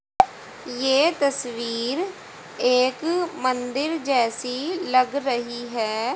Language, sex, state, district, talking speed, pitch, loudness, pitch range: Hindi, female, Haryana, Jhajjar, 80 wpm, 255 Hz, -23 LUFS, 240-315 Hz